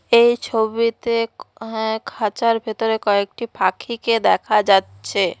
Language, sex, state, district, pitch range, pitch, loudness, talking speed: Bengali, female, West Bengal, Cooch Behar, 210-230 Hz, 225 Hz, -19 LUFS, 100 wpm